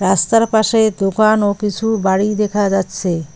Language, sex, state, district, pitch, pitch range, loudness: Bengali, female, West Bengal, Cooch Behar, 205 Hz, 190-215 Hz, -15 LUFS